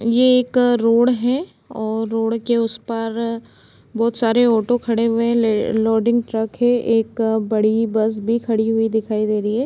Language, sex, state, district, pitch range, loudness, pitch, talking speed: Hindi, female, Uttar Pradesh, Jalaun, 220-235 Hz, -18 LUFS, 230 Hz, 180 wpm